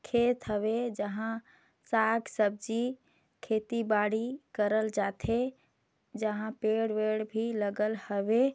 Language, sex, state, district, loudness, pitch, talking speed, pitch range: Hindi, female, Chhattisgarh, Sarguja, -31 LUFS, 220 Hz, 100 wpm, 210-235 Hz